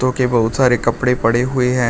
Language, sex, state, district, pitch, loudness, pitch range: Hindi, male, Uttar Pradesh, Shamli, 125 Hz, -16 LUFS, 120-125 Hz